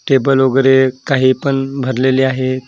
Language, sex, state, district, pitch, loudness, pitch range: Marathi, male, Maharashtra, Gondia, 130 Hz, -14 LUFS, 130-135 Hz